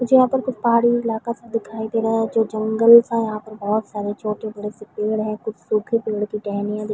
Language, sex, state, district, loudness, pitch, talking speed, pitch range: Hindi, female, Chhattisgarh, Bilaspur, -20 LUFS, 220 Hz, 260 wpm, 210-230 Hz